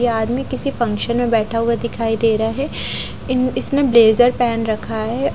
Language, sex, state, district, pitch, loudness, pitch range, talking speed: Hindi, female, Punjab, Fazilka, 235 Hz, -17 LUFS, 225-250 Hz, 200 wpm